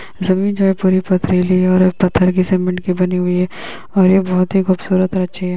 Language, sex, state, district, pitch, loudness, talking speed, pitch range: Hindi, female, Uttar Pradesh, Hamirpur, 185 Hz, -15 LUFS, 235 wpm, 180-185 Hz